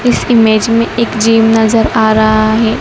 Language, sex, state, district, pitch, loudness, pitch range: Hindi, female, Madhya Pradesh, Dhar, 225 Hz, -10 LUFS, 220-230 Hz